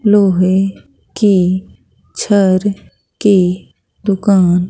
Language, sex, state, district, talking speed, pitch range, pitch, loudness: Hindi, female, Bihar, Katihar, 65 wpm, 185-205 Hz, 195 Hz, -13 LUFS